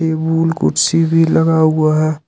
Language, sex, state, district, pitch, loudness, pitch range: Hindi, male, Jharkhand, Deoghar, 160 Hz, -14 LUFS, 155-165 Hz